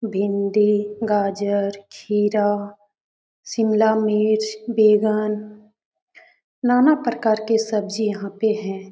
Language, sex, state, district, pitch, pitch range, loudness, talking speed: Hindi, male, Bihar, Jamui, 210 Hz, 205-220 Hz, -20 LUFS, 95 wpm